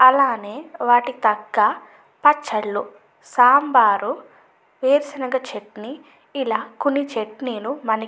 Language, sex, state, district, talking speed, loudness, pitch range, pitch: Telugu, female, Andhra Pradesh, Chittoor, 90 wpm, -20 LUFS, 220-280 Hz, 255 Hz